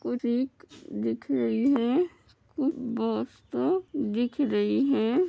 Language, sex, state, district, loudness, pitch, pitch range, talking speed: Hindi, female, Uttar Pradesh, Hamirpur, -28 LUFS, 255 Hz, 225-295 Hz, 125 wpm